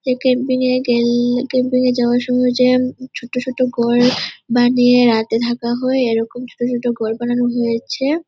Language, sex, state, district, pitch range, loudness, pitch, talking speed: Bengali, female, West Bengal, Purulia, 240-255 Hz, -16 LUFS, 245 Hz, 145 wpm